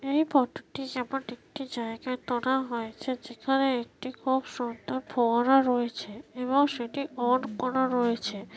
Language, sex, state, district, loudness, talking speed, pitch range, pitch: Bengali, female, West Bengal, North 24 Parganas, -28 LUFS, 135 wpm, 235-265 Hz, 255 Hz